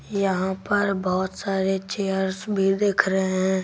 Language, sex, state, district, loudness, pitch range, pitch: Hindi, female, Delhi, New Delhi, -23 LUFS, 190-195 Hz, 190 Hz